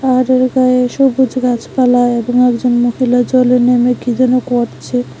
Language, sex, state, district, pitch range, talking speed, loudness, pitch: Bengali, female, Tripura, West Tripura, 245-255 Hz, 140 wpm, -12 LUFS, 250 Hz